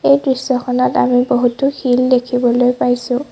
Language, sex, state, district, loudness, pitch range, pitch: Assamese, female, Assam, Sonitpur, -15 LUFS, 245-260 Hz, 250 Hz